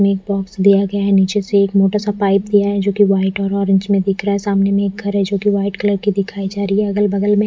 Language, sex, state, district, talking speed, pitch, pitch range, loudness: Hindi, female, Punjab, Fazilka, 295 wpm, 200 Hz, 195-205 Hz, -16 LUFS